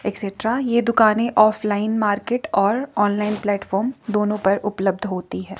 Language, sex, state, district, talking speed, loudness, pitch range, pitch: Hindi, female, Himachal Pradesh, Shimla, 130 wpm, -20 LUFS, 200-225 Hz, 210 Hz